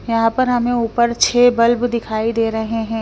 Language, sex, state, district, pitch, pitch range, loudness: Hindi, female, Punjab, Fazilka, 230 Hz, 225-245 Hz, -16 LUFS